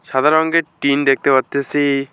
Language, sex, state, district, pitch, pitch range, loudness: Bengali, male, West Bengal, Alipurduar, 140 Hz, 135-150 Hz, -16 LUFS